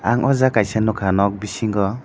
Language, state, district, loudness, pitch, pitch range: Kokborok, Tripura, Dhalai, -19 LUFS, 110 Hz, 100-120 Hz